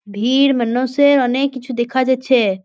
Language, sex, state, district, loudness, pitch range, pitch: Bengali, female, West Bengal, Purulia, -16 LUFS, 240-265 Hz, 255 Hz